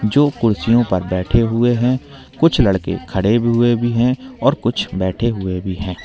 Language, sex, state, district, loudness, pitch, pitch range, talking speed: Hindi, male, Uttar Pradesh, Lalitpur, -17 LUFS, 115 Hz, 95-120 Hz, 190 wpm